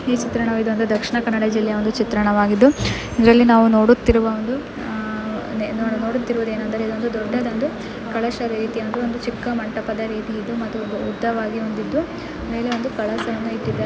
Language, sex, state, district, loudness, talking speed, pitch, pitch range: Kannada, female, Karnataka, Dakshina Kannada, -20 LUFS, 125 wpm, 225 Hz, 220-235 Hz